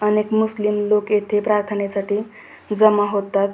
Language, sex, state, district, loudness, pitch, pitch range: Marathi, female, Maharashtra, Pune, -19 LUFS, 210 Hz, 205-210 Hz